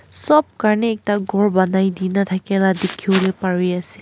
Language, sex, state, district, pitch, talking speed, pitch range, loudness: Nagamese, female, Nagaland, Kohima, 190 Hz, 120 wpm, 185-205 Hz, -18 LUFS